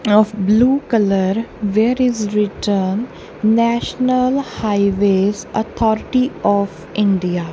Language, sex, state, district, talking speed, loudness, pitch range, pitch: English, female, Punjab, Kapurthala, 90 wpm, -17 LUFS, 200-235 Hz, 215 Hz